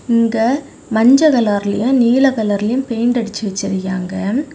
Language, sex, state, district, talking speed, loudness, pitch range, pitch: Tamil, female, Tamil Nadu, Kanyakumari, 105 wpm, -15 LUFS, 205-260 Hz, 230 Hz